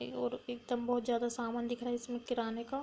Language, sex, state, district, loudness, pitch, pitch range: Hindi, female, Bihar, Darbhanga, -37 LUFS, 240 Hz, 235-245 Hz